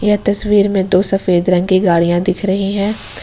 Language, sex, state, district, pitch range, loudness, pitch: Hindi, female, Jharkhand, Ranchi, 180-205 Hz, -14 LUFS, 195 Hz